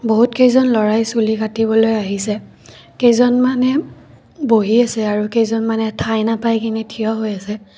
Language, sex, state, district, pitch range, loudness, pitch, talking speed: Assamese, female, Assam, Kamrup Metropolitan, 220-235 Hz, -16 LUFS, 225 Hz, 125 wpm